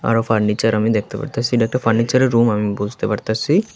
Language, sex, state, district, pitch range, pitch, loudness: Bengali, male, Tripura, West Tripura, 110-120 Hz, 115 Hz, -18 LUFS